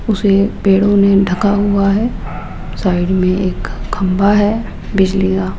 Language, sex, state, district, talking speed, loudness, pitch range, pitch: Hindi, female, Rajasthan, Jaipur, 140 wpm, -14 LUFS, 190-205 Hz, 195 Hz